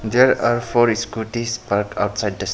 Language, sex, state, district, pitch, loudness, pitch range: English, male, Arunachal Pradesh, Papum Pare, 115 Hz, -19 LUFS, 105-120 Hz